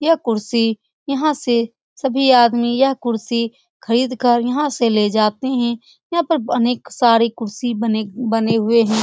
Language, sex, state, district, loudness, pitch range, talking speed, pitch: Hindi, female, Bihar, Saran, -17 LUFS, 225-260 Hz, 155 wpm, 235 Hz